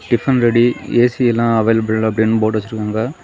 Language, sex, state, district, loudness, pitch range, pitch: Tamil, male, Tamil Nadu, Kanyakumari, -15 LUFS, 110-120 Hz, 115 Hz